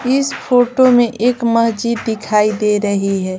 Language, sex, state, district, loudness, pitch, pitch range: Hindi, female, Bihar, Patna, -15 LUFS, 230 Hz, 210-245 Hz